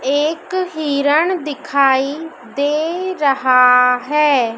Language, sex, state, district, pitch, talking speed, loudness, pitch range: Hindi, male, Madhya Pradesh, Dhar, 290 Hz, 80 wpm, -15 LUFS, 265-315 Hz